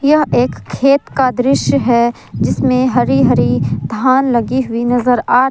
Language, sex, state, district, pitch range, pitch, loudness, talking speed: Hindi, female, Jharkhand, Palamu, 235-260 Hz, 250 Hz, -14 LUFS, 150 wpm